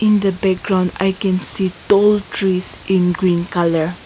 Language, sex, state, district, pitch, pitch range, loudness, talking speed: English, female, Nagaland, Kohima, 185 Hz, 180-195 Hz, -16 LUFS, 165 wpm